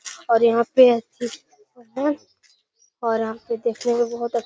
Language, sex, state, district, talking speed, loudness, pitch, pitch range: Hindi, male, Bihar, Gaya, 150 wpm, -21 LUFS, 235 Hz, 230-255 Hz